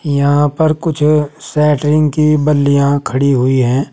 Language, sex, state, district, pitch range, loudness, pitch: Hindi, male, Uttar Pradesh, Saharanpur, 140-150 Hz, -13 LUFS, 145 Hz